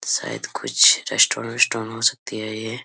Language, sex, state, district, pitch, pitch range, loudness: Hindi, male, Jharkhand, Sahebganj, 115 Hz, 110-115 Hz, -19 LUFS